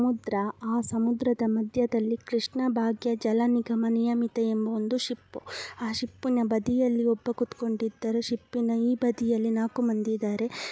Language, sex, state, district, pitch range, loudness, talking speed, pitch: Kannada, female, Karnataka, Dakshina Kannada, 225-245 Hz, -28 LUFS, 150 wpm, 235 Hz